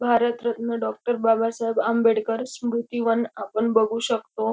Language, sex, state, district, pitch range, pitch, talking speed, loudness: Marathi, female, Maharashtra, Dhule, 225-235 Hz, 230 Hz, 130 wpm, -23 LUFS